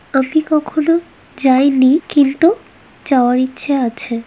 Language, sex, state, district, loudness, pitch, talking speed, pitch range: Bengali, female, West Bengal, Kolkata, -14 LUFS, 275 Hz, 100 wpm, 260-310 Hz